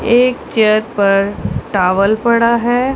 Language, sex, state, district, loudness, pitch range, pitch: Hindi, male, Punjab, Pathankot, -14 LUFS, 200-240 Hz, 220 Hz